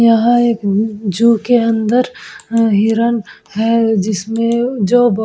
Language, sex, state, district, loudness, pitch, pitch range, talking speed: Hindi, female, Uttar Pradesh, Etah, -14 LUFS, 230 Hz, 215-235 Hz, 135 wpm